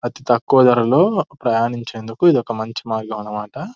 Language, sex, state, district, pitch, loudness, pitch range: Telugu, male, Telangana, Nalgonda, 120 Hz, -18 LUFS, 110-130 Hz